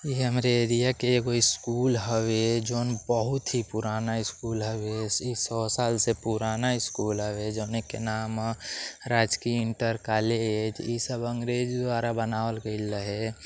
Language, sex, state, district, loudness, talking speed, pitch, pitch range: Bhojpuri, male, Uttar Pradesh, Deoria, -28 LUFS, 145 wpm, 115 Hz, 110-120 Hz